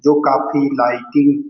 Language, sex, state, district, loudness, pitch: Hindi, male, Bihar, Lakhisarai, -16 LUFS, 145 Hz